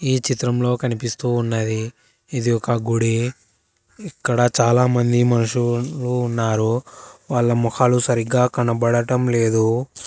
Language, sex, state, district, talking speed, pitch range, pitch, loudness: Telugu, male, Telangana, Hyderabad, 95 wpm, 115-125 Hz, 120 Hz, -19 LUFS